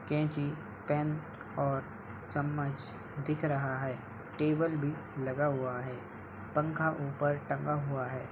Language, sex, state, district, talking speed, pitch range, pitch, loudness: Hindi, male, Bihar, Samastipur, 125 wpm, 125-150 Hz, 140 Hz, -34 LUFS